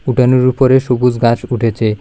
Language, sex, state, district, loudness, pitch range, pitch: Bengali, male, Tripura, South Tripura, -13 LUFS, 115-130 Hz, 125 Hz